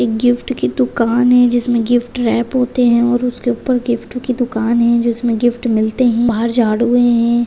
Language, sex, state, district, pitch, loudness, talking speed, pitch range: Hindi, female, Maharashtra, Dhule, 240 Hz, -15 LUFS, 200 wpm, 235-245 Hz